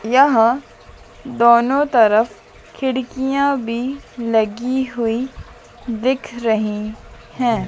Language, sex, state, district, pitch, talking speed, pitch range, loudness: Hindi, female, Madhya Pradesh, Dhar, 235 Hz, 80 wpm, 225-260 Hz, -18 LUFS